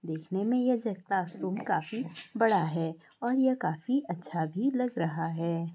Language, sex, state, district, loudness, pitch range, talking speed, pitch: Hindi, female, Maharashtra, Aurangabad, -31 LUFS, 165-240 Hz, 155 wpm, 190 Hz